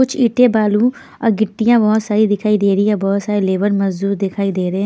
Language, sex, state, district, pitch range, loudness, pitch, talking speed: Hindi, female, Punjab, Pathankot, 195-225 Hz, -15 LUFS, 210 Hz, 235 wpm